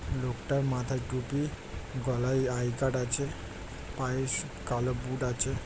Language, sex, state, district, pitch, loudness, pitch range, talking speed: Bengali, male, West Bengal, Jhargram, 130 Hz, -32 LUFS, 125-135 Hz, 125 wpm